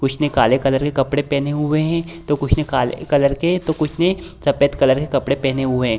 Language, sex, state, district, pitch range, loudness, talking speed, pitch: Hindi, female, Bihar, Supaul, 135-155 Hz, -18 LUFS, 250 wpm, 140 Hz